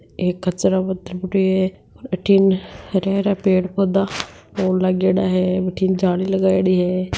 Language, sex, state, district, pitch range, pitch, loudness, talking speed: Marwari, female, Rajasthan, Nagaur, 185-190 Hz, 185 Hz, -19 LUFS, 140 wpm